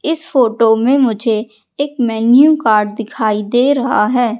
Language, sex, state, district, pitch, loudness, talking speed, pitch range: Hindi, female, Madhya Pradesh, Katni, 240 Hz, -13 LUFS, 150 wpm, 220-270 Hz